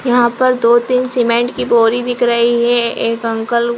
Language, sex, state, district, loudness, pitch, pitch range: Hindi, female, Goa, North and South Goa, -14 LUFS, 240 Hz, 235-245 Hz